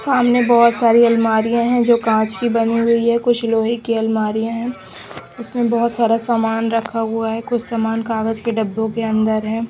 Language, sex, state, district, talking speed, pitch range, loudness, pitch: Hindi, female, Punjab, Pathankot, 190 wpm, 225-235 Hz, -17 LUFS, 230 Hz